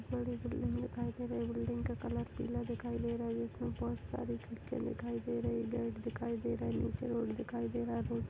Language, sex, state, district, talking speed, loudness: Hindi, female, Chhattisgarh, Balrampur, 260 wpm, -39 LUFS